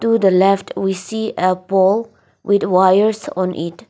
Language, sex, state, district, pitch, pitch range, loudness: English, female, Nagaland, Dimapur, 195 Hz, 185-215 Hz, -16 LUFS